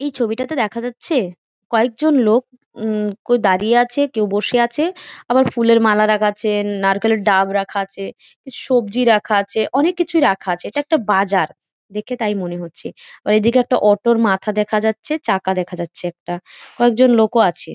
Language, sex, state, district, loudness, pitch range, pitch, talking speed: Bengali, female, West Bengal, Malda, -17 LUFS, 205-250 Hz, 220 Hz, 170 wpm